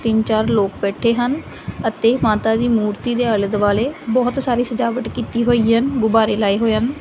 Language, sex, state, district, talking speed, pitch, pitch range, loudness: Punjabi, female, Punjab, Kapurthala, 180 wpm, 230 Hz, 215-240 Hz, -18 LUFS